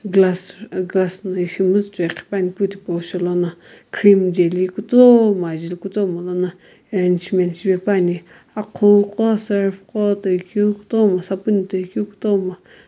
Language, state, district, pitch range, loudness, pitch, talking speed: Sumi, Nagaland, Kohima, 180-205 Hz, -18 LUFS, 190 Hz, 120 wpm